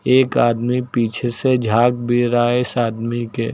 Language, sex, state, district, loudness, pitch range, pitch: Hindi, male, Uttar Pradesh, Lucknow, -18 LUFS, 115-125 Hz, 120 Hz